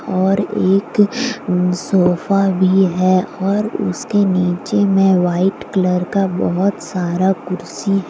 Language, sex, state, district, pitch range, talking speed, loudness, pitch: Hindi, female, Jharkhand, Deoghar, 180-200 Hz, 110 wpm, -16 LUFS, 190 Hz